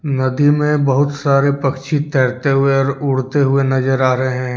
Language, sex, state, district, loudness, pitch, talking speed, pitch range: Hindi, male, Jharkhand, Deoghar, -15 LUFS, 135 Hz, 185 wpm, 130-145 Hz